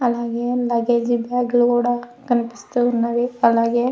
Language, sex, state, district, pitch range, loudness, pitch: Telugu, female, Andhra Pradesh, Anantapur, 235-245 Hz, -19 LUFS, 240 Hz